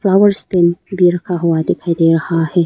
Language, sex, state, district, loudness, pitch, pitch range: Hindi, female, Arunachal Pradesh, Lower Dibang Valley, -14 LUFS, 175 Hz, 165-185 Hz